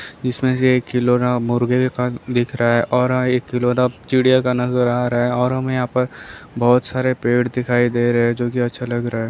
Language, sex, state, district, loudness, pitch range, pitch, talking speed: Hindi, male, Chhattisgarh, Raigarh, -18 LUFS, 120-125 Hz, 125 Hz, 240 wpm